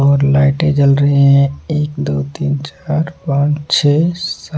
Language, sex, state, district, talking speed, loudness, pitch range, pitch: Hindi, male, Punjab, Pathankot, 155 wpm, -14 LUFS, 140-150 Hz, 145 Hz